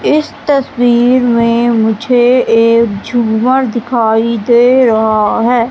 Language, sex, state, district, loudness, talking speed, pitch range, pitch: Hindi, female, Madhya Pradesh, Katni, -10 LUFS, 105 wpm, 230-250 Hz, 235 Hz